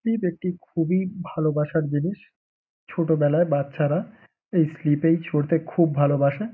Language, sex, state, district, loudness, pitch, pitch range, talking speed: Bengali, male, West Bengal, Paschim Medinipur, -23 LUFS, 165 Hz, 150-180 Hz, 120 wpm